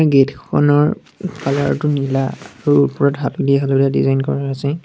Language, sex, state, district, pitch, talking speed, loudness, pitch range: Assamese, male, Assam, Sonitpur, 140 Hz, 150 wpm, -17 LUFS, 135-145 Hz